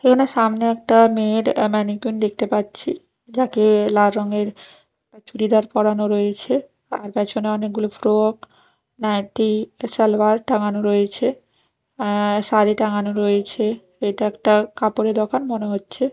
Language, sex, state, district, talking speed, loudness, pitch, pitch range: Bengali, female, Odisha, Nuapada, 120 wpm, -20 LUFS, 215 Hz, 210-225 Hz